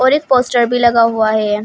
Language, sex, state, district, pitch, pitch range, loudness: Hindi, female, Uttar Pradesh, Shamli, 235 Hz, 220-250 Hz, -13 LUFS